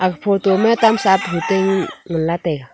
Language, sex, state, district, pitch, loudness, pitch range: Wancho, female, Arunachal Pradesh, Longding, 190 Hz, -17 LUFS, 170-195 Hz